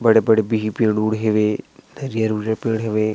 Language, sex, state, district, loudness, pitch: Chhattisgarhi, male, Chhattisgarh, Sarguja, -19 LUFS, 110 Hz